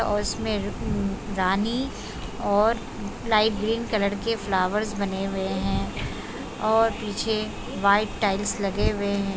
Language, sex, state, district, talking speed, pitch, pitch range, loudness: Hindi, female, Uttar Pradesh, Budaun, 120 wpm, 205 Hz, 200-220 Hz, -25 LUFS